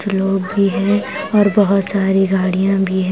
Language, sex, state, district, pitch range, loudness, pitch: Hindi, female, Himachal Pradesh, Shimla, 190-200 Hz, -16 LUFS, 195 Hz